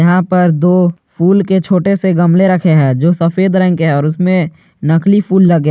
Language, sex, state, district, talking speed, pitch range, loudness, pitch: Hindi, male, Jharkhand, Garhwa, 210 wpm, 165-185 Hz, -11 LUFS, 180 Hz